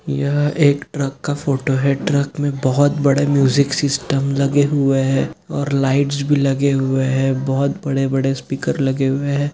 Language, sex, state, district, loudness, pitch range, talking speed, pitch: Hindi, male, Jharkhand, Sahebganj, -18 LUFS, 135-145 Hz, 170 wpm, 140 Hz